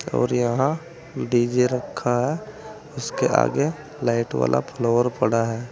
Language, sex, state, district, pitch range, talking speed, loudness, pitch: Hindi, male, Uttar Pradesh, Saharanpur, 120-150 Hz, 125 wpm, -23 LUFS, 125 Hz